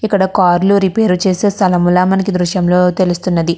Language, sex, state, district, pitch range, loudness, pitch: Telugu, female, Andhra Pradesh, Krishna, 180-195 Hz, -13 LUFS, 185 Hz